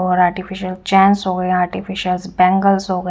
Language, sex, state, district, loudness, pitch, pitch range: Hindi, female, Haryana, Rohtak, -16 LUFS, 185 Hz, 180-195 Hz